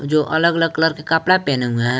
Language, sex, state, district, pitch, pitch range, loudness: Hindi, male, Jharkhand, Garhwa, 160 Hz, 140-165 Hz, -17 LUFS